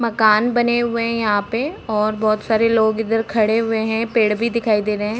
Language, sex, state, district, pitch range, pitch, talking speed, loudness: Hindi, female, Uttar Pradesh, Deoria, 215-230 Hz, 225 Hz, 230 wpm, -18 LUFS